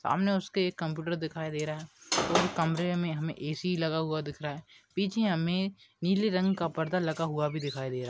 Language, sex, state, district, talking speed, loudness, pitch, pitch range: Hindi, male, Chhattisgarh, Sarguja, 215 wpm, -31 LUFS, 165 Hz, 155-180 Hz